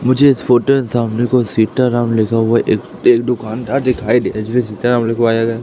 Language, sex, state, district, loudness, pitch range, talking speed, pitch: Hindi, male, Madhya Pradesh, Katni, -15 LUFS, 115-125 Hz, 200 wpm, 120 Hz